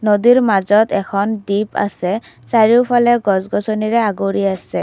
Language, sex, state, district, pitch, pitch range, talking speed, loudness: Assamese, female, Assam, Kamrup Metropolitan, 210 Hz, 200-225 Hz, 110 wpm, -15 LUFS